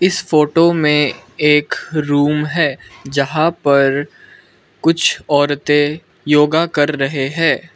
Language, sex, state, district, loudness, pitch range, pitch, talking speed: Hindi, male, Arunachal Pradesh, Lower Dibang Valley, -15 LUFS, 145-165 Hz, 150 Hz, 110 wpm